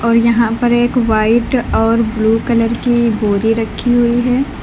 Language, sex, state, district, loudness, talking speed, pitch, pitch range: Hindi, female, Uttar Pradesh, Lalitpur, -14 LUFS, 170 wpm, 235 Hz, 225-240 Hz